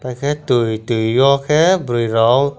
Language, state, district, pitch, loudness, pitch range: Kokborok, Tripura, West Tripura, 125 Hz, -15 LUFS, 115-145 Hz